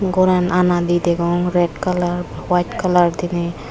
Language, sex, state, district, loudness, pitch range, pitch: Chakma, female, Tripura, Unakoti, -18 LUFS, 175-180 Hz, 175 Hz